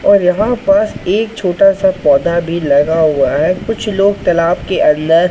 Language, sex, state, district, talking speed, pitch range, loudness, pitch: Hindi, male, Madhya Pradesh, Katni, 180 wpm, 170-210 Hz, -13 LUFS, 185 Hz